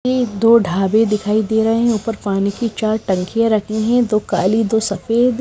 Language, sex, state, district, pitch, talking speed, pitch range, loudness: Hindi, female, Himachal Pradesh, Shimla, 220 Hz, 200 wpm, 205-230 Hz, -16 LUFS